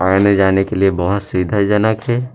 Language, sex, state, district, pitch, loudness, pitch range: Chhattisgarhi, male, Chhattisgarh, Rajnandgaon, 100 Hz, -15 LUFS, 95-105 Hz